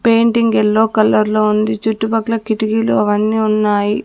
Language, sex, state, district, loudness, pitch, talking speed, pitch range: Telugu, female, Andhra Pradesh, Sri Satya Sai, -14 LUFS, 215 Hz, 120 wpm, 215-225 Hz